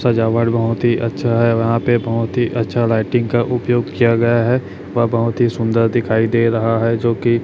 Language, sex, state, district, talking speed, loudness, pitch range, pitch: Hindi, male, Chhattisgarh, Raipur, 210 wpm, -16 LUFS, 115-120 Hz, 115 Hz